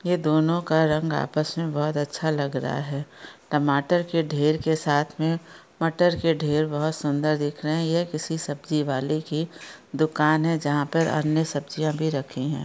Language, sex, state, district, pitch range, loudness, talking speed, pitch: Hindi, female, Chhattisgarh, Bastar, 145-160 Hz, -24 LUFS, 185 wpm, 155 Hz